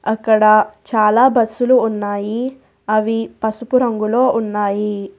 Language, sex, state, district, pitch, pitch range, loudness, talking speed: Telugu, female, Telangana, Hyderabad, 220 Hz, 210-240 Hz, -16 LUFS, 90 wpm